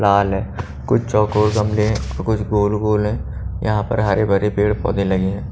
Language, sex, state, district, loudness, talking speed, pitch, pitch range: Hindi, male, Haryana, Charkhi Dadri, -19 LUFS, 175 wpm, 105 Hz, 100-105 Hz